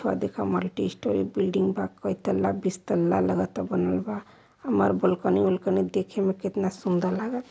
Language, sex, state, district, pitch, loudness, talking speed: Hindi, male, Uttar Pradesh, Varanasi, 185 Hz, -26 LUFS, 170 wpm